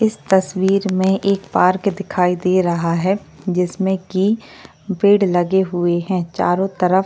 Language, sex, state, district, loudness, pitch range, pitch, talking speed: Hindi, female, Maharashtra, Chandrapur, -18 LUFS, 180-195 Hz, 190 Hz, 145 wpm